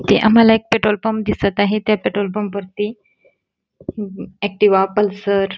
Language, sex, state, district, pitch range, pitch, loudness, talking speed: Marathi, female, Karnataka, Belgaum, 200-215 Hz, 210 Hz, -17 LUFS, 130 wpm